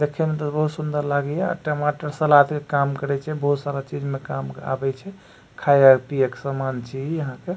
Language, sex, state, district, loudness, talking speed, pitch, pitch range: Maithili, male, Bihar, Supaul, -22 LUFS, 220 wpm, 145 Hz, 135-150 Hz